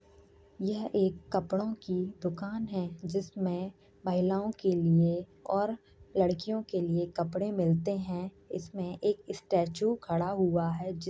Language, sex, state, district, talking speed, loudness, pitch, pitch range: Hindi, female, Uttar Pradesh, Jyotiba Phule Nagar, 130 wpm, -32 LUFS, 185 Hz, 175-200 Hz